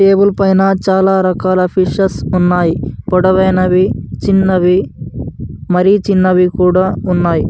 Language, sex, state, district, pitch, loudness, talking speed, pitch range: Telugu, male, Andhra Pradesh, Anantapur, 185 Hz, -12 LUFS, 95 wpm, 180-190 Hz